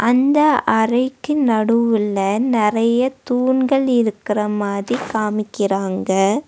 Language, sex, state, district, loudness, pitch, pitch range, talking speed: Tamil, female, Tamil Nadu, Nilgiris, -18 LUFS, 230 Hz, 210-255 Hz, 75 wpm